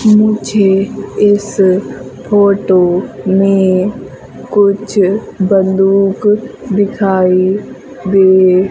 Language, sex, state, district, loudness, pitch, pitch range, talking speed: Hindi, female, Madhya Pradesh, Umaria, -11 LUFS, 195 Hz, 185-205 Hz, 55 wpm